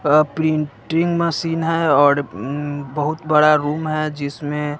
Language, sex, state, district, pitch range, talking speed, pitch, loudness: Hindi, male, Bihar, West Champaran, 145-160 Hz, 140 wpm, 150 Hz, -19 LUFS